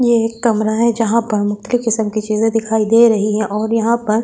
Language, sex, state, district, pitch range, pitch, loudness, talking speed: Hindi, female, Delhi, New Delhi, 215-230 Hz, 225 Hz, -15 LUFS, 240 wpm